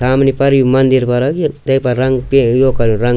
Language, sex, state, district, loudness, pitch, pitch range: Garhwali, male, Uttarakhand, Tehri Garhwal, -13 LUFS, 130 Hz, 125-135 Hz